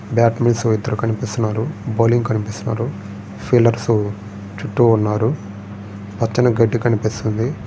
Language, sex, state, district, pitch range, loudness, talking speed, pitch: Telugu, male, Andhra Pradesh, Srikakulam, 105-120 Hz, -18 LUFS, 85 wpm, 115 Hz